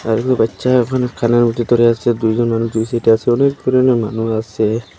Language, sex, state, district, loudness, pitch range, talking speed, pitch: Bengali, male, Assam, Hailakandi, -15 LUFS, 115-125 Hz, 190 wpm, 115 Hz